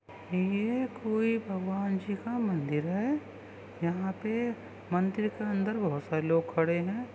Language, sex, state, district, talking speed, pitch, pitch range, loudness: Hindi, female, Maharashtra, Sindhudurg, 145 wpm, 195 Hz, 175-220 Hz, -31 LUFS